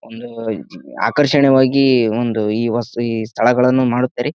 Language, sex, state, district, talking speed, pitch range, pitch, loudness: Kannada, male, Karnataka, Bijapur, 85 wpm, 115-130 Hz, 120 Hz, -16 LUFS